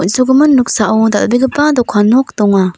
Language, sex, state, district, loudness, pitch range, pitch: Garo, female, Meghalaya, North Garo Hills, -11 LUFS, 210-265 Hz, 240 Hz